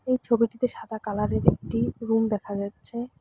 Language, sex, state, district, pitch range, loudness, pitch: Bengali, female, West Bengal, Alipurduar, 210-240 Hz, -26 LUFS, 225 Hz